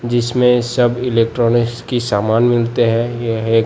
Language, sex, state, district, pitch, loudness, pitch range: Hindi, male, Gujarat, Gandhinagar, 120 Hz, -15 LUFS, 115-120 Hz